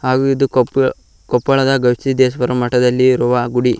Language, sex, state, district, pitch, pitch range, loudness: Kannada, male, Karnataka, Koppal, 125 Hz, 125-135 Hz, -15 LUFS